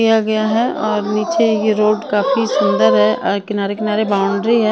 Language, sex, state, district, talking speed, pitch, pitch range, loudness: Hindi, female, Punjab, Kapurthala, 205 wpm, 215 Hz, 205-225 Hz, -16 LUFS